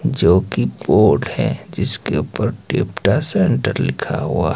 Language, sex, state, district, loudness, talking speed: Hindi, male, Himachal Pradesh, Shimla, -18 LUFS, 120 wpm